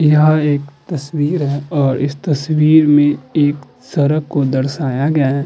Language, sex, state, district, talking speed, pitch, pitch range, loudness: Hindi, male, Uttar Pradesh, Muzaffarnagar, 155 wpm, 145 Hz, 140-155 Hz, -15 LUFS